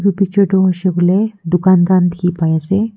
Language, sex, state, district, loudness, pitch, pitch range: Nagamese, female, Nagaland, Kohima, -14 LUFS, 185 Hz, 175-200 Hz